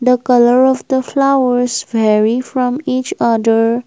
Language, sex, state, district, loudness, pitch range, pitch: English, female, Assam, Kamrup Metropolitan, -14 LUFS, 235-260 Hz, 250 Hz